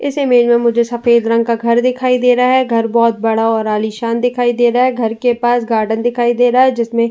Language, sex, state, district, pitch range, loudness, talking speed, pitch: Hindi, female, Uttar Pradesh, Jyotiba Phule Nagar, 230-245 Hz, -13 LUFS, 260 wpm, 240 Hz